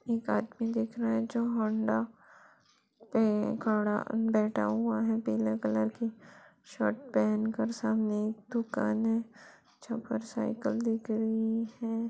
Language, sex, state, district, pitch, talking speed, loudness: Hindi, female, Bihar, Saran, 220 Hz, 130 wpm, -31 LUFS